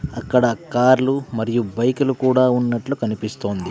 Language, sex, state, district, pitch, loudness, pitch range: Telugu, male, Andhra Pradesh, Sri Satya Sai, 125 Hz, -19 LUFS, 115-130 Hz